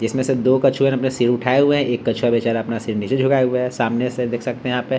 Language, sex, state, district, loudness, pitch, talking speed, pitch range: Hindi, male, Bihar, Vaishali, -19 LUFS, 125 Hz, 325 wpm, 120-130 Hz